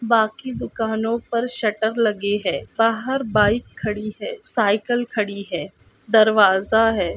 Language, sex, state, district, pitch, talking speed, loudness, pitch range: Hindi, female, Chhattisgarh, Balrampur, 220 Hz, 125 wpm, -20 LUFS, 210-235 Hz